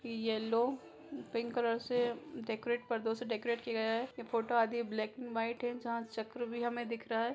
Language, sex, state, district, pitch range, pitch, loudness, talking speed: Hindi, female, Bihar, Begusarai, 225-240 Hz, 235 Hz, -37 LUFS, 210 wpm